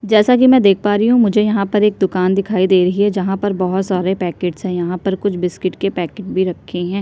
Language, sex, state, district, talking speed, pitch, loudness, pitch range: Hindi, female, Chhattisgarh, Sukma, 265 wpm, 195 Hz, -16 LUFS, 185-205 Hz